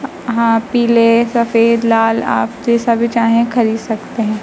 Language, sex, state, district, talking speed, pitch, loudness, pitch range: Hindi, male, Madhya Pradesh, Dhar, 150 wpm, 230 Hz, -14 LUFS, 225-235 Hz